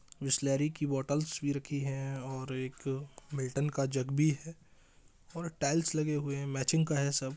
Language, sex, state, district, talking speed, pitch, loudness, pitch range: Hindi, male, Bihar, East Champaran, 180 wpm, 140 Hz, -33 LUFS, 135-150 Hz